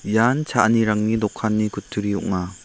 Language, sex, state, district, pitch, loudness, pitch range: Garo, male, Meghalaya, West Garo Hills, 110 Hz, -21 LUFS, 105-115 Hz